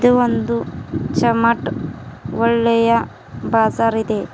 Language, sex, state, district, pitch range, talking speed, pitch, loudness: Kannada, female, Karnataka, Bidar, 225-235 Hz, 85 wpm, 230 Hz, -18 LUFS